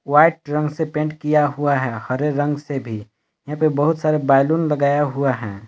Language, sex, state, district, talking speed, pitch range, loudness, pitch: Hindi, male, Jharkhand, Palamu, 200 wpm, 135-150 Hz, -19 LUFS, 145 Hz